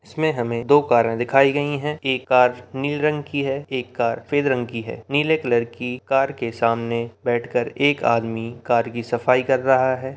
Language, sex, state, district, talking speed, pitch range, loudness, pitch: Hindi, male, Bihar, Begusarai, 200 wpm, 120-140 Hz, -21 LUFS, 125 Hz